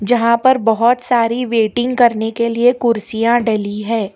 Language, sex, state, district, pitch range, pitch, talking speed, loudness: Hindi, female, Karnataka, Bangalore, 225-245 Hz, 235 Hz, 160 wpm, -15 LUFS